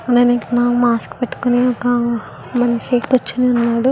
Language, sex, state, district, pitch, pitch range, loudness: Telugu, female, Andhra Pradesh, Visakhapatnam, 245 Hz, 240-250 Hz, -16 LUFS